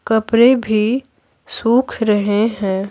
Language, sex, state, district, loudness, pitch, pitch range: Hindi, female, Bihar, Patna, -16 LUFS, 225 Hz, 210-240 Hz